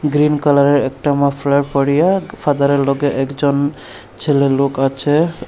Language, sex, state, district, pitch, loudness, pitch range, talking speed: Bengali, male, Tripura, Unakoti, 140 Hz, -15 LUFS, 140-145 Hz, 120 wpm